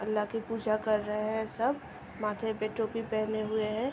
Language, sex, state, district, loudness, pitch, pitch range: Hindi, female, Uttar Pradesh, Hamirpur, -32 LUFS, 215 Hz, 215-225 Hz